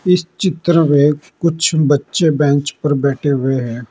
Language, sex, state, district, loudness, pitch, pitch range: Hindi, male, Uttar Pradesh, Saharanpur, -15 LUFS, 150 Hz, 140-170 Hz